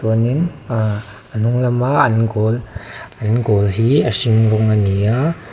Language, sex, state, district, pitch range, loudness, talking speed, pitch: Mizo, male, Mizoram, Aizawl, 110-125 Hz, -16 LUFS, 175 wpm, 110 Hz